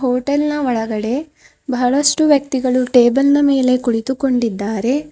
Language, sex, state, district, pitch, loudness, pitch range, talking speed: Kannada, female, Karnataka, Bidar, 255 Hz, -16 LUFS, 245-285 Hz, 105 wpm